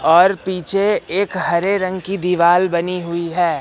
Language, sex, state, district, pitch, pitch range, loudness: Hindi, male, Madhya Pradesh, Katni, 180 Hz, 170-190 Hz, -17 LUFS